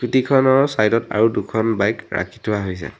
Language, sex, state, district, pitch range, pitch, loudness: Assamese, male, Assam, Sonitpur, 100-125 Hz, 110 Hz, -19 LUFS